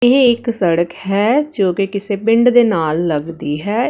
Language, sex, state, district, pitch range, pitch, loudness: Punjabi, female, Karnataka, Bangalore, 170-240 Hz, 200 Hz, -15 LUFS